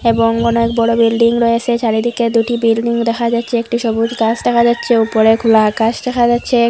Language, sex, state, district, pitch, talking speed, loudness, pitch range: Bengali, female, Assam, Hailakandi, 230 Hz, 180 wpm, -14 LUFS, 230-235 Hz